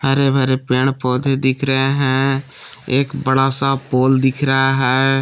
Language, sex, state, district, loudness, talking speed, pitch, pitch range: Hindi, male, Jharkhand, Palamu, -16 LUFS, 160 wpm, 135 Hz, 130-135 Hz